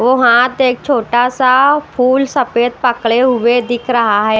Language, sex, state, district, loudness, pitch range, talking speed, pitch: Hindi, female, Bihar, West Champaran, -12 LUFS, 235-260 Hz, 165 wpm, 245 Hz